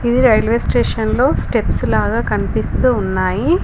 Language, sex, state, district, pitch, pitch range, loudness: Telugu, female, Telangana, Komaram Bheem, 240 Hz, 190-255 Hz, -16 LUFS